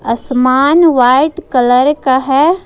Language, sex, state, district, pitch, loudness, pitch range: Hindi, female, Jharkhand, Ranchi, 270 Hz, -11 LUFS, 255-295 Hz